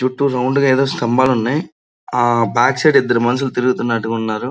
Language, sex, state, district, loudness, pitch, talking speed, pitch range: Telugu, male, Andhra Pradesh, Srikakulam, -16 LUFS, 125 Hz, 175 wpm, 120-135 Hz